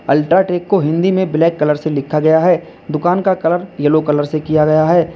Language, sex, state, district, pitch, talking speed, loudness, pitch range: Hindi, male, Uttar Pradesh, Lalitpur, 160 Hz, 220 wpm, -14 LUFS, 155-175 Hz